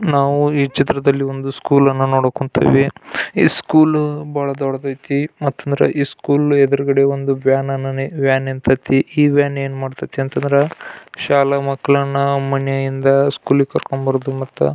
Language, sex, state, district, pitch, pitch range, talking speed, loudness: Kannada, male, Karnataka, Belgaum, 140 Hz, 135-140 Hz, 140 wpm, -16 LUFS